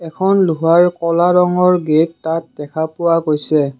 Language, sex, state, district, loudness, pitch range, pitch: Assamese, male, Assam, Kamrup Metropolitan, -15 LUFS, 160-175 Hz, 165 Hz